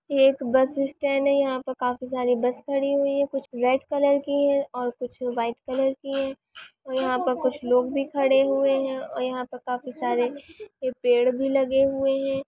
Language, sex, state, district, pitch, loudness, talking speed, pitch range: Hindi, female, Maharashtra, Solapur, 270 Hz, -24 LUFS, 200 wpm, 250-275 Hz